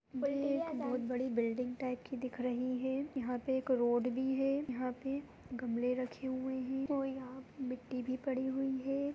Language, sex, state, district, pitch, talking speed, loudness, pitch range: Hindi, female, Chhattisgarh, Kabirdham, 260 Hz, 185 wpm, -37 LUFS, 250-270 Hz